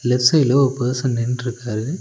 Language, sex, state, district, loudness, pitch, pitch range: Tamil, male, Tamil Nadu, Nilgiris, -19 LUFS, 125 Hz, 120-135 Hz